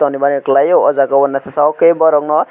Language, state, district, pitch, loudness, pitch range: Kokborok, Tripura, West Tripura, 140 Hz, -12 LUFS, 140-150 Hz